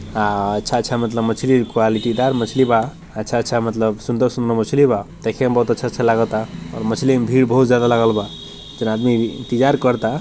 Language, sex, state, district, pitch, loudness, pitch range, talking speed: Bhojpuri, male, Bihar, Gopalganj, 115 Hz, -18 LUFS, 110-125 Hz, 175 wpm